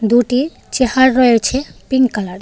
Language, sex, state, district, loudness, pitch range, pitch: Bengali, female, Tripura, West Tripura, -14 LUFS, 235-260 Hz, 255 Hz